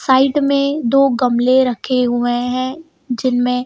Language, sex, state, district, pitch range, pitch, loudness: Hindi, female, Madhya Pradesh, Bhopal, 245-275 Hz, 255 Hz, -16 LUFS